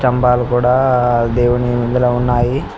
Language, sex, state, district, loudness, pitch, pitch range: Telugu, male, Telangana, Mahabubabad, -14 LUFS, 125 Hz, 120-125 Hz